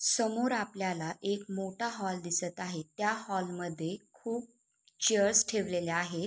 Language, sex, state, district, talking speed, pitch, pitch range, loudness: Marathi, female, Maharashtra, Sindhudurg, 135 wpm, 195 Hz, 175-220 Hz, -33 LUFS